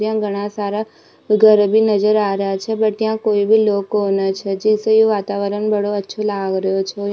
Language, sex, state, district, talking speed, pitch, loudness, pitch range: Rajasthani, female, Rajasthan, Nagaur, 200 wpm, 205 Hz, -17 LUFS, 200-215 Hz